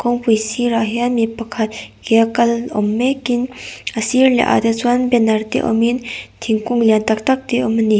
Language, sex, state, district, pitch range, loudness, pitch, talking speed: Mizo, female, Mizoram, Aizawl, 220-245 Hz, -17 LUFS, 235 Hz, 200 wpm